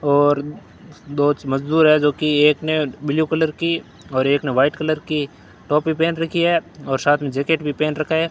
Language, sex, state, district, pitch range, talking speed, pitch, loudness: Hindi, male, Rajasthan, Bikaner, 145-160 Hz, 210 wpm, 150 Hz, -19 LUFS